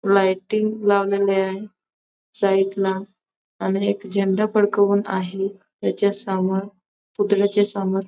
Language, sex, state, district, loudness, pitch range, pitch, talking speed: Marathi, female, Maharashtra, Dhule, -21 LUFS, 190-200 Hz, 195 Hz, 105 wpm